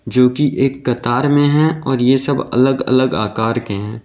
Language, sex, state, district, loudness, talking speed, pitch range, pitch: Hindi, male, Uttar Pradesh, Lalitpur, -15 LUFS, 205 wpm, 120-140 Hz, 130 Hz